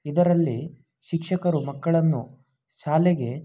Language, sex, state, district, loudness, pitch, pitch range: Kannada, male, Karnataka, Mysore, -24 LUFS, 155 Hz, 140-170 Hz